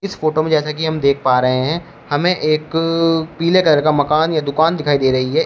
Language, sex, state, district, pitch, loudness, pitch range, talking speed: Hindi, male, Uttar Pradesh, Shamli, 155 Hz, -16 LUFS, 145-165 Hz, 230 wpm